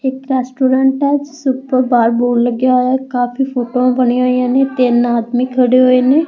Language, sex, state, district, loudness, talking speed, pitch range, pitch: Punjabi, female, Punjab, Fazilka, -14 LUFS, 190 wpm, 245-265 Hz, 255 Hz